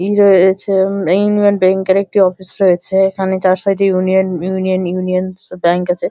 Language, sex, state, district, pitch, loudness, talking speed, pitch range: Bengali, male, West Bengal, Malda, 190 Hz, -14 LUFS, 165 wpm, 185-195 Hz